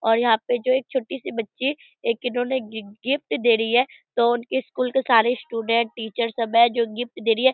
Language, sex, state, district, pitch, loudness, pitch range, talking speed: Hindi, female, Bihar, Purnia, 240 Hz, -22 LUFS, 230-260 Hz, 220 wpm